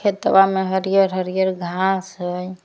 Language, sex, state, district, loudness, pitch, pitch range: Magahi, female, Jharkhand, Palamu, -19 LUFS, 190 Hz, 185-195 Hz